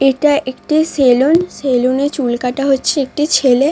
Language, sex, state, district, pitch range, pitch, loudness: Bengali, female, West Bengal, Dakshin Dinajpur, 255-295 Hz, 275 Hz, -14 LUFS